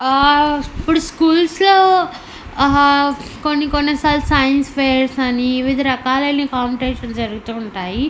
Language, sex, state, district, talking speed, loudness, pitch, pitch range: Telugu, female, Andhra Pradesh, Anantapur, 120 wpm, -16 LUFS, 280 Hz, 255-295 Hz